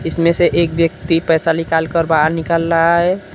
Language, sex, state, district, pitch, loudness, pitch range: Hindi, male, Uttar Pradesh, Lucknow, 165 Hz, -15 LUFS, 165-170 Hz